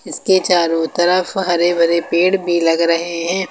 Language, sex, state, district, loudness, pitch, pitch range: Hindi, female, Uttar Pradesh, Lucknow, -15 LUFS, 175 Hz, 170-180 Hz